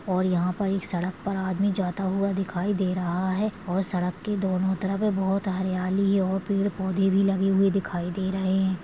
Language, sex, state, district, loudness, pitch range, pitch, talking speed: Hindi, female, Maharashtra, Nagpur, -26 LUFS, 185-195 Hz, 190 Hz, 215 wpm